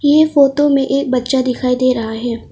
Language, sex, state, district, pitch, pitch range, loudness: Hindi, female, Arunachal Pradesh, Longding, 260 Hz, 250-280 Hz, -14 LUFS